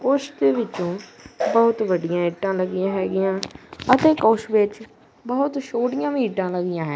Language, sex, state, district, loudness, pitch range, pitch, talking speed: Punjabi, male, Punjab, Kapurthala, -22 LUFS, 185-250 Hz, 210 Hz, 140 wpm